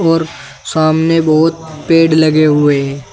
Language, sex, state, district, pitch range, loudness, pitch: Hindi, male, Uttar Pradesh, Saharanpur, 155-165 Hz, -11 LUFS, 160 Hz